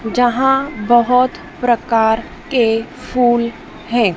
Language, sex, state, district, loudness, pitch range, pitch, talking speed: Hindi, female, Madhya Pradesh, Dhar, -16 LUFS, 230-250 Hz, 240 Hz, 85 wpm